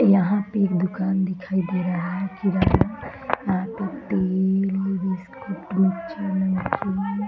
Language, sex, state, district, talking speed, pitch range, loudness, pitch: Hindi, female, Bihar, Darbhanga, 90 wpm, 185-195 Hz, -24 LUFS, 190 Hz